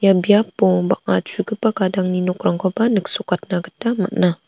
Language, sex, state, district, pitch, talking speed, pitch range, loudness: Garo, female, Meghalaya, North Garo Hills, 190 Hz, 120 wpm, 180-215 Hz, -18 LUFS